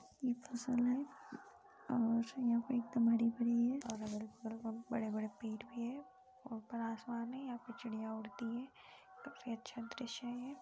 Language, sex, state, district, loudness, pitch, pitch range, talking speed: Hindi, female, Uttar Pradesh, Budaun, -40 LUFS, 235 Hz, 230-255 Hz, 150 wpm